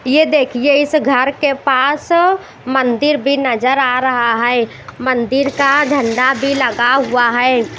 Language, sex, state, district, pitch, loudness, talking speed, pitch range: Hindi, female, Bihar, West Champaran, 265 Hz, -14 LUFS, 145 wpm, 250-285 Hz